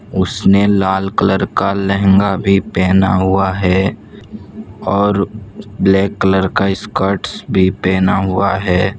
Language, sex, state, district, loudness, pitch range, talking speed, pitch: Hindi, male, Gujarat, Valsad, -14 LUFS, 95-100 Hz, 120 wpm, 95 Hz